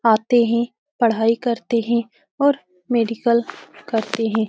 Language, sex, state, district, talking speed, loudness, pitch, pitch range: Hindi, female, Bihar, Saran, 135 wpm, -20 LUFS, 235 Hz, 225-240 Hz